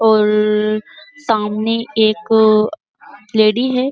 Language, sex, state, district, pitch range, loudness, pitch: Hindi, female, Uttar Pradesh, Jyotiba Phule Nagar, 215-250 Hz, -15 LUFS, 220 Hz